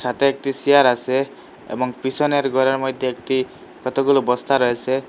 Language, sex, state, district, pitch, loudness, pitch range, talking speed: Bengali, male, Assam, Hailakandi, 130 Hz, -19 LUFS, 125-135 Hz, 140 wpm